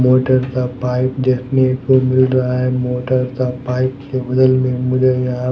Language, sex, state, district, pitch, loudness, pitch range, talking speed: Hindi, male, Odisha, Nuapada, 130 Hz, -16 LUFS, 125-130 Hz, 175 wpm